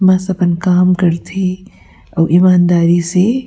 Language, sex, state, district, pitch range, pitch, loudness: Chhattisgarhi, female, Chhattisgarh, Rajnandgaon, 175-190 Hz, 180 Hz, -13 LUFS